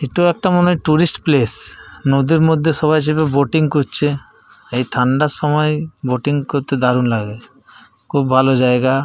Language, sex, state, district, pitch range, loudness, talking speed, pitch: Bengali, male, Jharkhand, Jamtara, 130-155 Hz, -16 LUFS, 150 wpm, 145 Hz